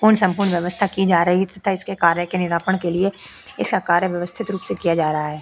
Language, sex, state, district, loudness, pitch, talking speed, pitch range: Hindi, female, Uttar Pradesh, Etah, -20 LUFS, 185 Hz, 255 wpm, 170-195 Hz